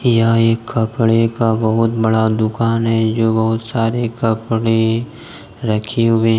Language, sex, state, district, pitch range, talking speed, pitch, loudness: Hindi, male, Jharkhand, Deoghar, 110-115 Hz, 130 wpm, 115 Hz, -16 LUFS